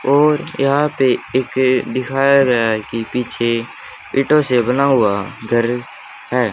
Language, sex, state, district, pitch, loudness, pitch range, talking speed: Hindi, male, Haryana, Charkhi Dadri, 130 Hz, -16 LUFS, 120-135 Hz, 140 wpm